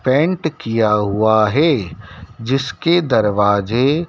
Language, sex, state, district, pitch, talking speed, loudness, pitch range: Hindi, male, Madhya Pradesh, Dhar, 115 Hz, 90 wpm, -16 LUFS, 105-145 Hz